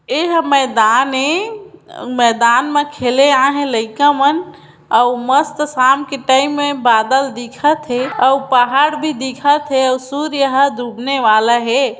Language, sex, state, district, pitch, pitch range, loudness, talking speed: Hindi, female, Chhattisgarh, Bilaspur, 270 Hz, 250-290 Hz, -14 LUFS, 155 wpm